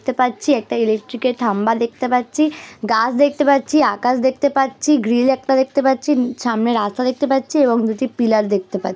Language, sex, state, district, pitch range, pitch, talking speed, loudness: Bengali, female, West Bengal, Dakshin Dinajpur, 230-270 Hz, 255 Hz, 175 wpm, -17 LUFS